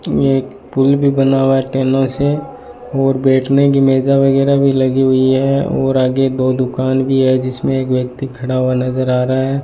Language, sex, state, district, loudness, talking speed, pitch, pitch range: Hindi, male, Rajasthan, Bikaner, -14 LUFS, 200 wpm, 135 Hz, 130-135 Hz